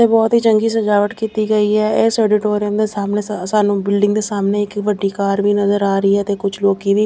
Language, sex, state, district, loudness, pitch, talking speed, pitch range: Punjabi, female, Chandigarh, Chandigarh, -16 LUFS, 205 Hz, 230 wpm, 200-215 Hz